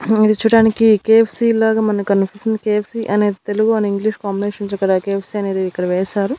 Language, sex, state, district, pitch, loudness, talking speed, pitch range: Telugu, female, Andhra Pradesh, Annamaya, 210 Hz, -16 LUFS, 160 wpm, 200-220 Hz